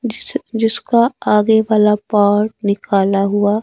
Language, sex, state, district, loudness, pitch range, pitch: Hindi, male, Himachal Pradesh, Shimla, -15 LUFS, 205-225 Hz, 210 Hz